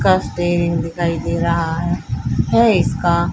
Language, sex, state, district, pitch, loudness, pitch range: Hindi, female, Haryana, Charkhi Dadri, 165 Hz, -18 LUFS, 120-170 Hz